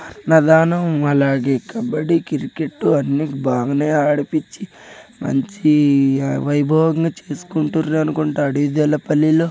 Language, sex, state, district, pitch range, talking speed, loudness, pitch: Telugu, male, Telangana, Nalgonda, 145-160 Hz, 90 wpm, -17 LUFS, 150 Hz